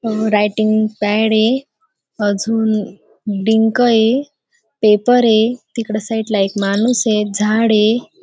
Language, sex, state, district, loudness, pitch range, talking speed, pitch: Marathi, female, Maharashtra, Dhule, -15 LUFS, 210-235 Hz, 125 wpm, 220 Hz